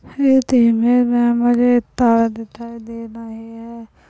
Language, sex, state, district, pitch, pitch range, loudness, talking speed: Hindi, female, Chhattisgarh, Bastar, 235 Hz, 230-245 Hz, -15 LUFS, 130 wpm